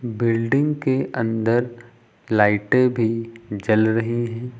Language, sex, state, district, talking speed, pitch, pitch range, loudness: Hindi, male, Uttar Pradesh, Lucknow, 105 wpm, 115 Hz, 115-125 Hz, -21 LUFS